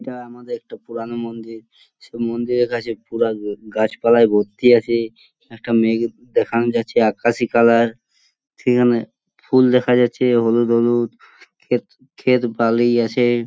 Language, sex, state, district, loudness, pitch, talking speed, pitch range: Bengali, male, West Bengal, Purulia, -18 LUFS, 115 Hz, 140 wpm, 115-120 Hz